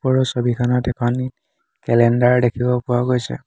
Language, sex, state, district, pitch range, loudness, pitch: Assamese, male, Assam, Hailakandi, 120-125 Hz, -18 LUFS, 125 Hz